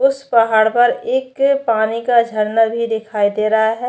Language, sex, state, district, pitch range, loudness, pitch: Hindi, female, Chhattisgarh, Bastar, 220-245 Hz, -16 LUFS, 230 Hz